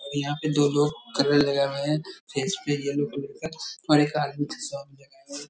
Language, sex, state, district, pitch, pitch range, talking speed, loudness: Hindi, male, Bihar, Darbhanga, 145 Hz, 140-150 Hz, 195 wpm, -26 LUFS